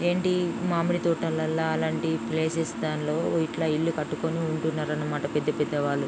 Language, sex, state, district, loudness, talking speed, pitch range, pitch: Telugu, female, Andhra Pradesh, Chittoor, -27 LUFS, 140 wpm, 150-165 Hz, 160 Hz